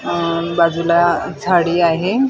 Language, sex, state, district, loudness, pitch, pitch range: Marathi, female, Maharashtra, Mumbai Suburban, -16 LUFS, 170 Hz, 170-175 Hz